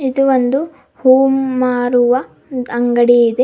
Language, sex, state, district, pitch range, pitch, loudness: Kannada, female, Karnataka, Bidar, 245-270 Hz, 255 Hz, -14 LUFS